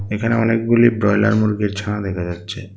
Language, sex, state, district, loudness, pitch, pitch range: Bengali, male, Tripura, West Tripura, -18 LUFS, 105 Hz, 100-115 Hz